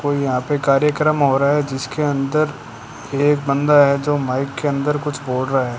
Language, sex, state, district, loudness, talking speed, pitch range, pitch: Hindi, male, Rajasthan, Bikaner, -18 LUFS, 205 wpm, 135-150 Hz, 140 Hz